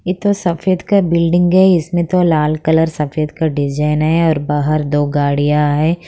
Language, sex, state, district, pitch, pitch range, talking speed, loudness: Hindi, female, Haryana, Charkhi Dadri, 160 Hz, 150-175 Hz, 190 wpm, -14 LUFS